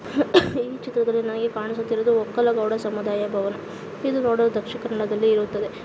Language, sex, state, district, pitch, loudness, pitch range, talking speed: Kannada, female, Karnataka, Dakshina Kannada, 225 Hz, -23 LUFS, 215-235 Hz, 90 wpm